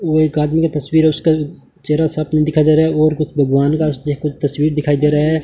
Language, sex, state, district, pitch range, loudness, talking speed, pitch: Hindi, male, Rajasthan, Bikaner, 150-155 Hz, -15 LUFS, 285 wpm, 155 Hz